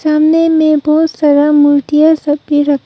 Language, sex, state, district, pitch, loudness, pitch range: Hindi, female, Arunachal Pradesh, Papum Pare, 300 Hz, -10 LUFS, 290-310 Hz